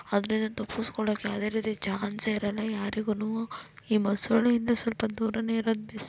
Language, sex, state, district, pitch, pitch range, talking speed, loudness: Kannada, female, Karnataka, Belgaum, 220 Hz, 210-225 Hz, 160 wpm, -29 LUFS